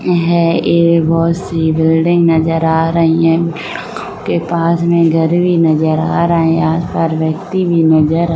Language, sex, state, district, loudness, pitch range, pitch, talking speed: Hindi, female, Uttar Pradesh, Muzaffarnagar, -13 LUFS, 160-170 Hz, 165 Hz, 165 wpm